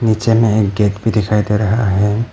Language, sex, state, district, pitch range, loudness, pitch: Hindi, male, Arunachal Pradesh, Papum Pare, 105-110 Hz, -15 LUFS, 105 Hz